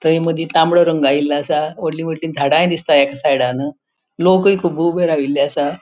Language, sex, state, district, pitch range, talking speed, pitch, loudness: Konkani, female, Goa, North and South Goa, 145-165 Hz, 165 wpm, 160 Hz, -16 LUFS